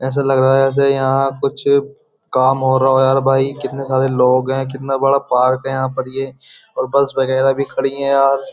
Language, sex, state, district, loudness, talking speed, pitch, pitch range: Hindi, male, Uttar Pradesh, Jyotiba Phule Nagar, -16 LUFS, 220 wpm, 135 Hz, 130-140 Hz